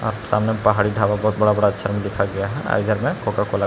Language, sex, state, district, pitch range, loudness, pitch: Hindi, male, Jharkhand, Palamu, 100-105 Hz, -20 LUFS, 105 Hz